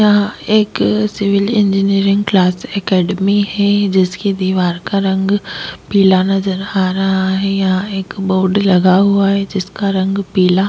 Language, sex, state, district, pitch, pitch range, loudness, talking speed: Hindi, female, Maharashtra, Chandrapur, 195 Hz, 190-200 Hz, -14 LUFS, 145 wpm